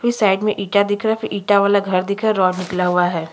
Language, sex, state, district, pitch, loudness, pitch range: Hindi, female, Chhattisgarh, Kabirdham, 200 Hz, -18 LUFS, 185-210 Hz